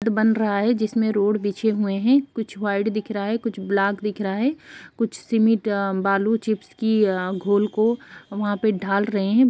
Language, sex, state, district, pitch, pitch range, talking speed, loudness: Hindi, female, Chhattisgarh, Kabirdham, 210 Hz, 200-225 Hz, 190 wpm, -22 LUFS